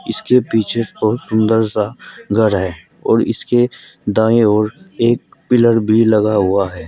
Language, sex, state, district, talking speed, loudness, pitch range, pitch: Hindi, male, Uttar Pradesh, Saharanpur, 150 wpm, -15 LUFS, 105-115 Hz, 110 Hz